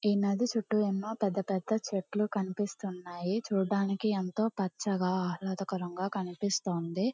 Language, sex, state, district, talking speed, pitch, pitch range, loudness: Telugu, female, Andhra Pradesh, Guntur, 110 wpm, 195 Hz, 190-210 Hz, -32 LUFS